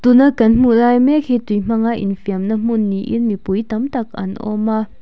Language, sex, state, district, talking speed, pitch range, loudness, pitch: Mizo, female, Mizoram, Aizawl, 215 wpm, 210-240 Hz, -16 LUFS, 225 Hz